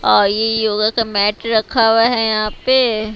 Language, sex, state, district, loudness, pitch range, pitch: Hindi, female, Himachal Pradesh, Shimla, -15 LUFS, 215-230 Hz, 220 Hz